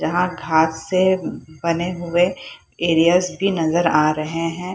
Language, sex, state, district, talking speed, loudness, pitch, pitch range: Hindi, female, Bihar, Purnia, 140 wpm, -19 LUFS, 170 Hz, 160-180 Hz